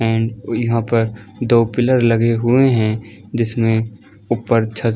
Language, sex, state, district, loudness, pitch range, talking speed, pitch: Hindi, male, Chhattisgarh, Balrampur, -17 LUFS, 110-120 Hz, 145 wpm, 115 Hz